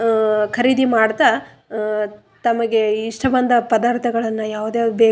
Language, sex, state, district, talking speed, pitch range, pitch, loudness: Kannada, female, Karnataka, Raichur, 70 wpm, 215-240 Hz, 225 Hz, -18 LUFS